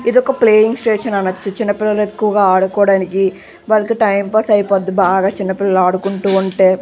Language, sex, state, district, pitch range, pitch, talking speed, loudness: Telugu, female, Andhra Pradesh, Visakhapatnam, 190-215 Hz, 200 Hz, 150 wpm, -14 LUFS